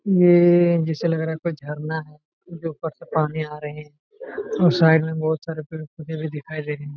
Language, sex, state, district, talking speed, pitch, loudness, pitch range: Hindi, male, Jharkhand, Jamtara, 230 wpm, 160 Hz, -21 LUFS, 150-170 Hz